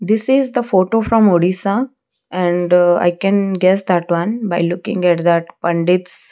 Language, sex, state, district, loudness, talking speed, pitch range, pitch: English, female, Odisha, Malkangiri, -15 LUFS, 160 wpm, 175-220 Hz, 185 Hz